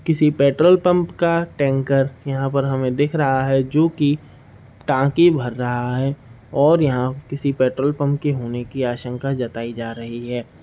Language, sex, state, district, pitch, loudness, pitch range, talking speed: Hindi, male, Bihar, Saharsa, 135 Hz, -19 LUFS, 125-145 Hz, 170 wpm